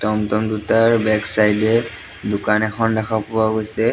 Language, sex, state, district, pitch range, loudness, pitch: Assamese, male, Assam, Sonitpur, 105-110 Hz, -17 LUFS, 110 Hz